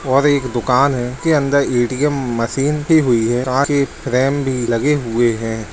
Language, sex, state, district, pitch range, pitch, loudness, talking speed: Hindi, male, Bihar, Lakhisarai, 120-140 Hz, 130 Hz, -16 LUFS, 190 wpm